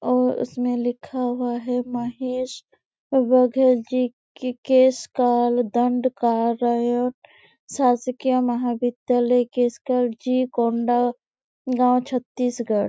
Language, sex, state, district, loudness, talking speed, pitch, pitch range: Hindi, female, Chhattisgarh, Bastar, -22 LUFS, 80 wpm, 245 Hz, 240-255 Hz